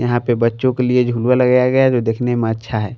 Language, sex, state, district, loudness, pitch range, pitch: Hindi, male, Bihar, Patna, -16 LUFS, 115-125 Hz, 120 Hz